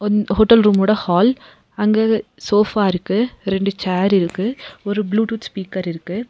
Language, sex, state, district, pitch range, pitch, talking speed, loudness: Tamil, female, Tamil Nadu, Nilgiris, 195-220 Hz, 210 Hz, 145 wpm, -18 LUFS